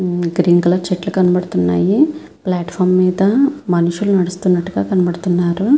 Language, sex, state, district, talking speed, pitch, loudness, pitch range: Telugu, female, Andhra Pradesh, Visakhapatnam, 115 wpm, 180 Hz, -15 LUFS, 175-190 Hz